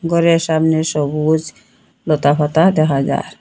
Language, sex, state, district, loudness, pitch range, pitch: Bengali, female, Assam, Hailakandi, -15 LUFS, 150-160 Hz, 160 Hz